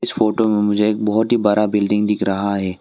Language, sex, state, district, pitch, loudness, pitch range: Hindi, male, Arunachal Pradesh, Longding, 105 Hz, -17 LUFS, 100-110 Hz